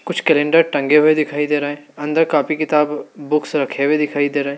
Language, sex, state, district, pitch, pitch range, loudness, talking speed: Hindi, male, Madhya Pradesh, Dhar, 150 Hz, 145-150 Hz, -17 LUFS, 220 wpm